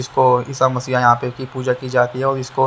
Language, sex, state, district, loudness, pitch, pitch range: Hindi, male, Haryana, Charkhi Dadri, -18 LUFS, 130 Hz, 125-130 Hz